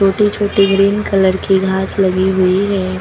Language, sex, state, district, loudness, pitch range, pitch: Hindi, female, Uttar Pradesh, Lucknow, -14 LUFS, 190-200 Hz, 195 Hz